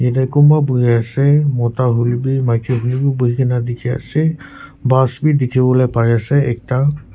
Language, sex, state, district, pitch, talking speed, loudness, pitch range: Nagamese, male, Nagaland, Kohima, 130 Hz, 135 wpm, -15 LUFS, 120-140 Hz